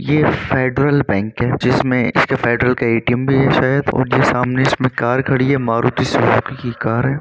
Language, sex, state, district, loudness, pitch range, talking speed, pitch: Hindi, male, Uttar Pradesh, Varanasi, -16 LUFS, 120-135 Hz, 200 wpm, 130 Hz